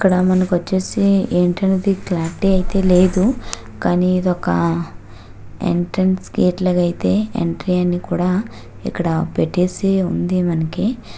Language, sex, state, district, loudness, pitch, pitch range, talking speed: Telugu, female, Andhra Pradesh, Visakhapatnam, -18 LUFS, 180 Hz, 175-190 Hz, 115 wpm